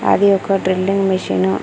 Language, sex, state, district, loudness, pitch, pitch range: Telugu, female, Telangana, Komaram Bheem, -16 LUFS, 190 Hz, 160-195 Hz